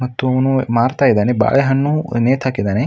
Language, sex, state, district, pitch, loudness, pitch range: Kannada, male, Karnataka, Mysore, 130 Hz, -15 LUFS, 120-135 Hz